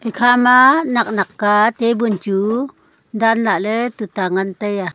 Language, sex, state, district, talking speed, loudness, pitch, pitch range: Wancho, female, Arunachal Pradesh, Longding, 155 wpm, -16 LUFS, 225 Hz, 200-235 Hz